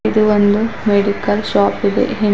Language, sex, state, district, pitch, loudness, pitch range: Kannada, female, Karnataka, Bidar, 205 Hz, -15 LUFS, 205-215 Hz